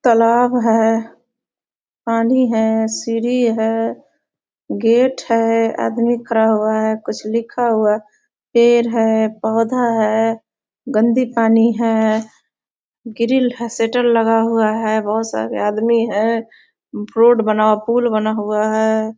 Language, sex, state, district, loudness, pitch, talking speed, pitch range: Hindi, female, Bihar, Muzaffarpur, -16 LUFS, 225 Hz, 125 wpm, 220-235 Hz